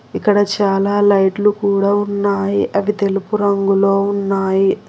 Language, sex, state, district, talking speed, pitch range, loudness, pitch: Telugu, male, Telangana, Hyderabad, 110 wpm, 195-205 Hz, -16 LUFS, 200 Hz